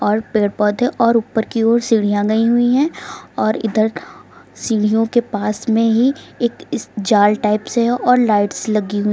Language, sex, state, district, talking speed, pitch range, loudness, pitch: Hindi, female, Uttar Pradesh, Lucknow, 175 wpm, 210-240 Hz, -16 LUFS, 225 Hz